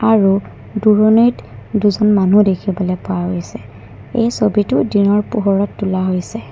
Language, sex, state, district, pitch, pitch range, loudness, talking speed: Assamese, female, Assam, Kamrup Metropolitan, 200 Hz, 185-215 Hz, -15 LUFS, 120 wpm